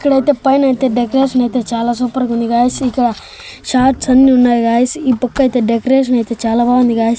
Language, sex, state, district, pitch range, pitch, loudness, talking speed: Telugu, male, Andhra Pradesh, Annamaya, 240-265 Hz, 250 Hz, -13 LUFS, 200 wpm